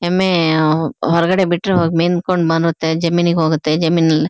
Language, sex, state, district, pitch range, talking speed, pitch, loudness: Kannada, female, Karnataka, Shimoga, 160-175 Hz, 165 wpm, 165 Hz, -15 LUFS